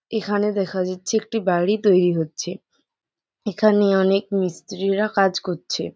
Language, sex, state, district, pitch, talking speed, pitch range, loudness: Bengali, female, West Bengal, Jhargram, 195 Hz, 120 wpm, 185-210 Hz, -21 LUFS